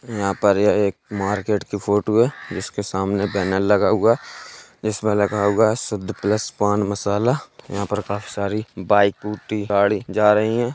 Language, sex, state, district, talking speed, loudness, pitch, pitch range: Hindi, male, Uttar Pradesh, Jalaun, 195 wpm, -20 LUFS, 105 Hz, 100-105 Hz